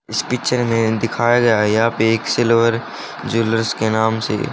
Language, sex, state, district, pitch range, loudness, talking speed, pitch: Hindi, male, Haryana, Rohtak, 110-115 Hz, -17 LUFS, 170 wpm, 115 Hz